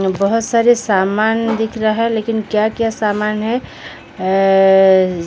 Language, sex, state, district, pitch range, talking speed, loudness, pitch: Hindi, female, Odisha, Sambalpur, 195-225 Hz, 135 wpm, -15 LUFS, 215 Hz